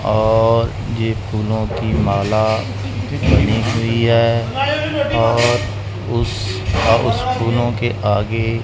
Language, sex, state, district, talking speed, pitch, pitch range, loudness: Hindi, male, Punjab, Kapurthala, 95 wpm, 115 Hz, 105-115 Hz, -17 LUFS